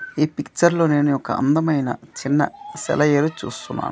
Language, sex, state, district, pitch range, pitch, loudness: Telugu, male, Andhra Pradesh, Manyam, 145-160 Hz, 150 Hz, -20 LUFS